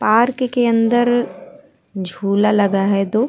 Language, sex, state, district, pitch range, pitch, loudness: Hindi, female, Uttar Pradesh, Jalaun, 200-245 Hz, 225 Hz, -16 LUFS